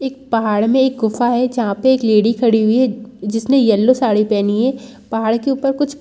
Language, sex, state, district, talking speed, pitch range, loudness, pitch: Hindi, female, Chhattisgarh, Balrampur, 220 wpm, 220-260 Hz, -15 LUFS, 235 Hz